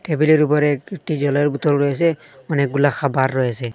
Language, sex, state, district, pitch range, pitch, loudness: Bengali, male, Assam, Hailakandi, 140-150 Hz, 145 Hz, -18 LUFS